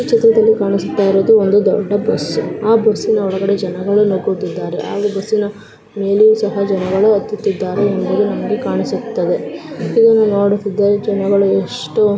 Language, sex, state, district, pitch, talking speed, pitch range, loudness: Kannada, female, Karnataka, Dakshina Kannada, 205 Hz, 130 wpm, 200-215 Hz, -15 LUFS